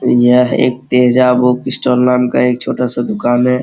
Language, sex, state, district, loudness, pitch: Hindi, male, Uttar Pradesh, Muzaffarnagar, -12 LUFS, 125 Hz